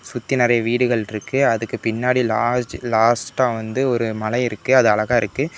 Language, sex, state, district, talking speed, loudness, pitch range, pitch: Tamil, male, Tamil Nadu, Namakkal, 160 wpm, -19 LUFS, 110-125 Hz, 120 Hz